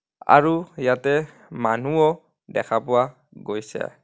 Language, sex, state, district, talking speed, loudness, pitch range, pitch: Assamese, male, Assam, Kamrup Metropolitan, 90 wpm, -22 LUFS, 120-155 Hz, 135 Hz